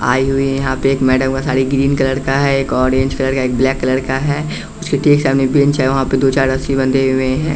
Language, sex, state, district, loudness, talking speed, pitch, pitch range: Hindi, male, Bihar, West Champaran, -15 LUFS, 260 wpm, 135 Hz, 130-135 Hz